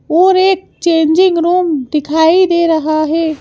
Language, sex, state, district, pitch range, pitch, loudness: Hindi, female, Madhya Pradesh, Bhopal, 315-360 Hz, 330 Hz, -12 LUFS